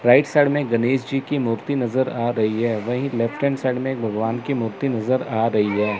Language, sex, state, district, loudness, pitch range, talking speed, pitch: Hindi, male, Chandigarh, Chandigarh, -21 LUFS, 115-135 Hz, 240 wpm, 120 Hz